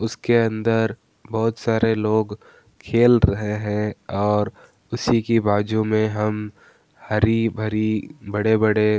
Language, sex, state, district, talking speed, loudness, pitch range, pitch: Hindi, male, Bihar, Gaya, 115 wpm, -21 LUFS, 105-115 Hz, 110 Hz